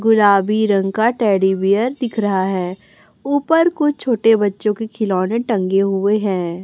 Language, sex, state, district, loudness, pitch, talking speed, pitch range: Hindi, male, Chhattisgarh, Raipur, -17 LUFS, 210 Hz, 155 wpm, 195-230 Hz